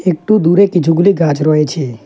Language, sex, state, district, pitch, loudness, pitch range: Bengali, male, West Bengal, Alipurduar, 165 Hz, -12 LUFS, 150-185 Hz